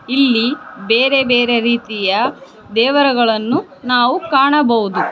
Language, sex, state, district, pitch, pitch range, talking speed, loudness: Kannada, female, Karnataka, Koppal, 245 Hz, 230-275 Hz, 80 wpm, -14 LUFS